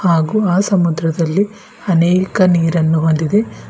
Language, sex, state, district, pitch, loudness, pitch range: Kannada, female, Karnataka, Bidar, 175 Hz, -15 LUFS, 165-195 Hz